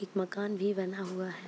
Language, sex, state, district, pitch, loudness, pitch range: Hindi, female, Bihar, Purnia, 190 Hz, -34 LUFS, 185-200 Hz